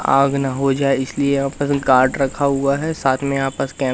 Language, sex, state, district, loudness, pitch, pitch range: Hindi, male, Madhya Pradesh, Katni, -18 LUFS, 140 Hz, 135-140 Hz